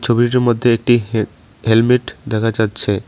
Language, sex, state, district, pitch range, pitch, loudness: Bengali, male, West Bengal, Cooch Behar, 110-120 Hz, 115 Hz, -16 LUFS